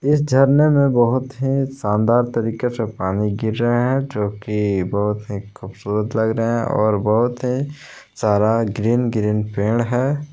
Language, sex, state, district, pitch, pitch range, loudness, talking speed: Hindi, male, Jharkhand, Palamu, 115 Hz, 105-130 Hz, -19 LUFS, 165 wpm